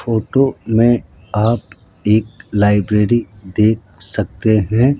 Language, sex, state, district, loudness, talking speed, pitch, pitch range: Hindi, male, Rajasthan, Jaipur, -16 LUFS, 95 wpm, 110 Hz, 100-115 Hz